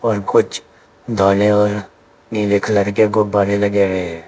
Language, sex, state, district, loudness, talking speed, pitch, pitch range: Hindi, male, Uttar Pradesh, Saharanpur, -16 LUFS, 155 wpm, 100 Hz, 100-105 Hz